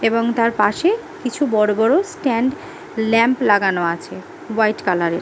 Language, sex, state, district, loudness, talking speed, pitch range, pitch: Bengali, female, West Bengal, Malda, -18 LUFS, 160 wpm, 210-250 Hz, 225 Hz